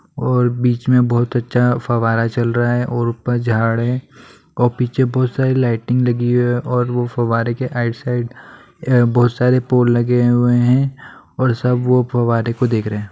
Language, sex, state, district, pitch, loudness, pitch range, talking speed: Hindi, male, Jharkhand, Sahebganj, 120 Hz, -17 LUFS, 120-125 Hz, 190 wpm